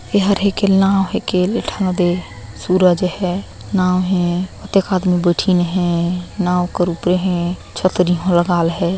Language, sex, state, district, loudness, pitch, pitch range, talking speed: Hindi, female, Chhattisgarh, Jashpur, -17 LUFS, 180 Hz, 175-190 Hz, 155 wpm